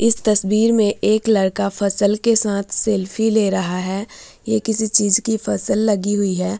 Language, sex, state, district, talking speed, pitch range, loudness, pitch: Hindi, female, Bihar, Vaishali, 190 wpm, 200-220 Hz, -18 LUFS, 210 Hz